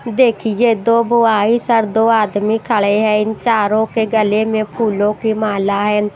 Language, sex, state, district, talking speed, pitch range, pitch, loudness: Hindi, female, Himachal Pradesh, Shimla, 165 wpm, 210-230 Hz, 220 Hz, -15 LUFS